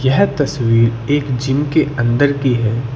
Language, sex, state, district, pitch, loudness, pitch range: Hindi, male, Uttar Pradesh, Lucknow, 130 Hz, -15 LUFS, 120-145 Hz